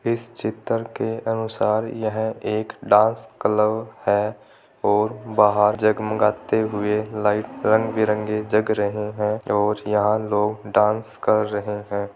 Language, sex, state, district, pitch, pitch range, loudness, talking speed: Hindi, male, Rajasthan, Churu, 105 Hz, 105-110 Hz, -22 LUFS, 130 wpm